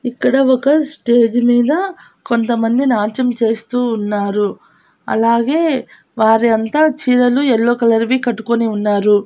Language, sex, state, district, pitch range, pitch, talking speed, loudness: Telugu, female, Andhra Pradesh, Annamaya, 225-260 Hz, 240 Hz, 110 wpm, -15 LUFS